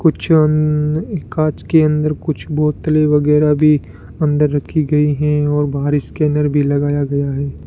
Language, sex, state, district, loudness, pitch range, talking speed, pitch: Hindi, male, Rajasthan, Bikaner, -15 LUFS, 145-155 Hz, 155 wpm, 150 Hz